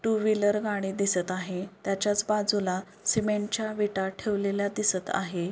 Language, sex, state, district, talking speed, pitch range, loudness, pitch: Marathi, female, Maharashtra, Pune, 140 wpm, 190-210 Hz, -28 LUFS, 200 Hz